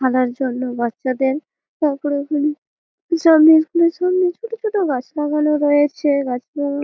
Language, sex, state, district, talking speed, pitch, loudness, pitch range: Bengali, female, West Bengal, Malda, 125 wpm, 295 Hz, -18 LUFS, 270-330 Hz